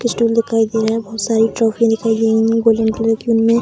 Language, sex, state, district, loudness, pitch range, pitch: Hindi, female, Bihar, Darbhanga, -15 LUFS, 225-230 Hz, 225 Hz